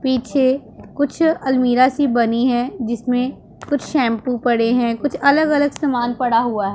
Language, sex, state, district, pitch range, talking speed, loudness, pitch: Hindi, female, Punjab, Pathankot, 240-280 Hz, 150 wpm, -18 LUFS, 255 Hz